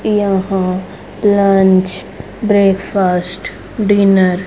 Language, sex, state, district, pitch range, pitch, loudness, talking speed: Hindi, female, Haryana, Rohtak, 185-200 Hz, 195 Hz, -13 LUFS, 65 wpm